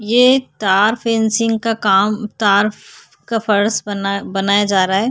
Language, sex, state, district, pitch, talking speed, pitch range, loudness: Hindi, female, Maharashtra, Chandrapur, 210 Hz, 130 wpm, 200-225 Hz, -16 LUFS